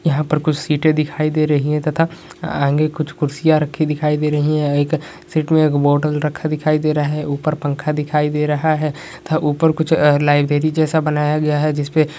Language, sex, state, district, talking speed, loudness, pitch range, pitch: Hindi, male, Jharkhand, Jamtara, 195 wpm, -17 LUFS, 150-155 Hz, 150 Hz